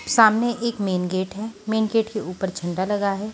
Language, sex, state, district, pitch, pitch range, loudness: Hindi, female, Bihar, Kaimur, 205 Hz, 185-220 Hz, -23 LUFS